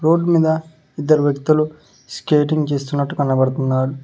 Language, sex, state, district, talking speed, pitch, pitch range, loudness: Telugu, male, Telangana, Mahabubabad, 105 wpm, 150 Hz, 140-155 Hz, -18 LUFS